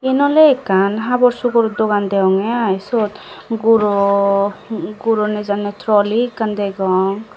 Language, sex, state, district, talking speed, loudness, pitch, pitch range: Chakma, female, Tripura, Dhalai, 120 wpm, -16 LUFS, 210 Hz, 200-230 Hz